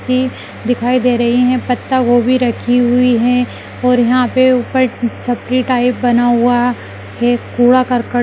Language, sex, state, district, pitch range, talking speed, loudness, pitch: Hindi, female, Maharashtra, Solapur, 240-255 Hz, 145 wpm, -13 LUFS, 245 Hz